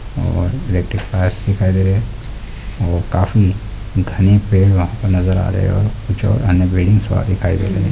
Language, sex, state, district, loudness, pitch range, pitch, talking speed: Hindi, male, Uttar Pradesh, Hamirpur, -16 LUFS, 95-105 Hz, 100 Hz, 135 wpm